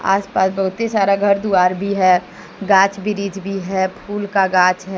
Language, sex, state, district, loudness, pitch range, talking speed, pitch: Hindi, female, Jharkhand, Deoghar, -17 LUFS, 185-200 Hz, 195 wpm, 195 Hz